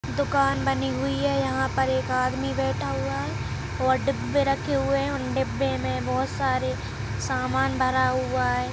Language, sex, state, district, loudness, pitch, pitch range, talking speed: Kumaoni, female, Uttarakhand, Tehri Garhwal, -25 LUFS, 130 Hz, 125-135 Hz, 170 wpm